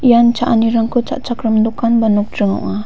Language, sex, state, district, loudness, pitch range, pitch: Garo, female, Meghalaya, West Garo Hills, -15 LUFS, 220-240 Hz, 230 Hz